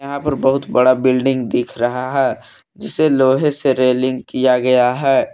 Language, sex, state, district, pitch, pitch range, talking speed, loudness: Hindi, male, Jharkhand, Palamu, 130 Hz, 125-135 Hz, 170 wpm, -16 LUFS